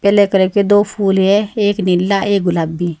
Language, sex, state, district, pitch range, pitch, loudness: Hindi, female, Uttar Pradesh, Saharanpur, 185-205 Hz, 200 Hz, -14 LUFS